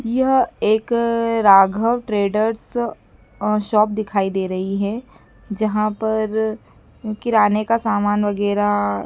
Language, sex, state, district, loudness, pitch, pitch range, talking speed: Hindi, female, Madhya Pradesh, Dhar, -19 LUFS, 215 Hz, 205-225 Hz, 105 wpm